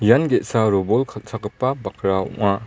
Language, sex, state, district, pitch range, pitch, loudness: Garo, male, Meghalaya, West Garo Hills, 100-125 Hz, 110 Hz, -20 LUFS